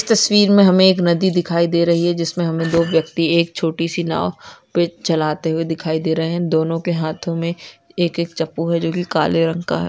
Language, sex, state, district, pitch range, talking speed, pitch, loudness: Hindi, female, Maharashtra, Nagpur, 165-175 Hz, 220 wpm, 170 Hz, -18 LUFS